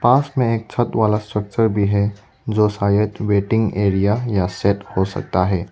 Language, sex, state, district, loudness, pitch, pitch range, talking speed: Hindi, male, Arunachal Pradesh, Lower Dibang Valley, -19 LUFS, 105 Hz, 100-110 Hz, 180 wpm